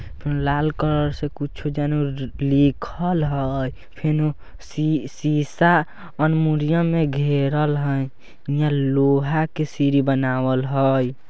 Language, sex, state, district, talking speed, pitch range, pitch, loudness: Bajjika, male, Bihar, Vaishali, 110 wpm, 135-155 Hz, 145 Hz, -21 LUFS